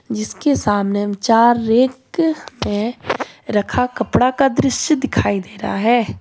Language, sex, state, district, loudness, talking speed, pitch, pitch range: Hindi, female, Jharkhand, Deoghar, -17 LUFS, 125 wpm, 235 Hz, 210-270 Hz